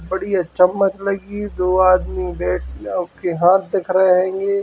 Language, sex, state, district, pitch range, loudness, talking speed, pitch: Hindi, male, Uttar Pradesh, Hamirpur, 180-195 Hz, -18 LUFS, 170 wpm, 185 Hz